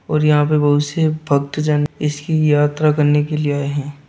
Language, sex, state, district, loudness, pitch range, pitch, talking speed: Hindi, male, Bihar, Samastipur, -17 LUFS, 145-150 Hz, 150 Hz, 205 wpm